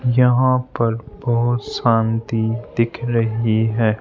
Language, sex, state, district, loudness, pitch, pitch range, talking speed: Hindi, male, Madhya Pradesh, Bhopal, -19 LUFS, 115 Hz, 115-120 Hz, 105 wpm